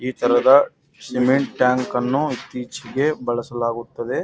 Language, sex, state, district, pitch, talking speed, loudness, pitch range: Kannada, male, Karnataka, Gulbarga, 125 Hz, 100 wpm, -20 LUFS, 120-130 Hz